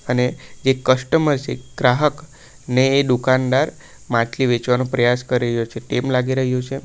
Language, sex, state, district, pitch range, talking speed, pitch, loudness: Gujarati, male, Gujarat, Valsad, 125-130 Hz, 160 wpm, 130 Hz, -19 LUFS